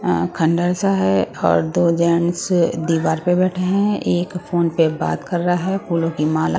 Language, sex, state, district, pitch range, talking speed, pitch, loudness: Hindi, female, Bihar, West Champaran, 160-180 Hz, 200 wpm, 170 Hz, -18 LUFS